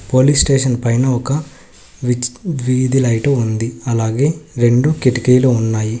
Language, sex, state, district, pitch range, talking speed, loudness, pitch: Telugu, male, Telangana, Hyderabad, 120-135 Hz, 110 wpm, -15 LUFS, 125 Hz